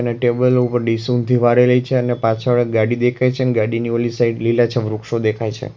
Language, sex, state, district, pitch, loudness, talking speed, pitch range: Gujarati, male, Gujarat, Valsad, 120 Hz, -17 LUFS, 210 wpm, 115-125 Hz